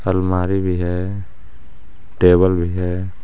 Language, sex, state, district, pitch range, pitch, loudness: Hindi, male, Jharkhand, Garhwa, 90-95 Hz, 90 Hz, -18 LUFS